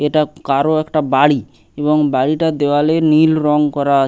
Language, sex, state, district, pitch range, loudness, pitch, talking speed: Bengali, male, West Bengal, Paschim Medinipur, 140-155 Hz, -15 LUFS, 150 Hz, 160 wpm